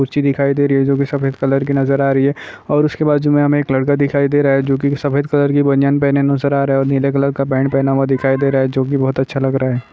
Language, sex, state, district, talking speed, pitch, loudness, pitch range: Hindi, male, Maharashtra, Nagpur, 315 wpm, 140 Hz, -15 LUFS, 135-140 Hz